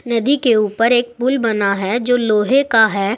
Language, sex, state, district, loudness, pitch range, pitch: Hindi, female, Uttar Pradesh, Saharanpur, -15 LUFS, 210-245 Hz, 230 Hz